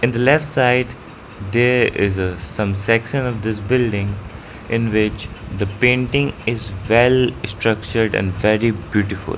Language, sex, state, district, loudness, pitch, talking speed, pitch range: English, male, Arunachal Pradesh, Lower Dibang Valley, -18 LUFS, 110 Hz, 140 wpm, 100-120 Hz